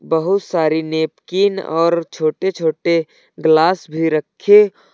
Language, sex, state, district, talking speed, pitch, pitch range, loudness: Hindi, male, Uttar Pradesh, Lucknow, 110 wpm, 165 Hz, 160-185 Hz, -16 LUFS